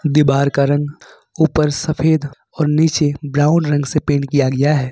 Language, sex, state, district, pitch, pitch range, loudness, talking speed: Hindi, male, Jharkhand, Ranchi, 150 Hz, 145-155 Hz, -16 LUFS, 170 wpm